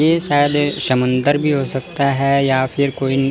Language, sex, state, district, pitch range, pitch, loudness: Hindi, male, Chandigarh, Chandigarh, 135-145 Hz, 140 Hz, -16 LUFS